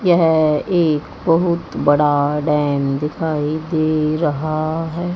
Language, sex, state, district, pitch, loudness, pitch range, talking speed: Hindi, female, Haryana, Jhajjar, 155 Hz, -18 LUFS, 150-165 Hz, 105 wpm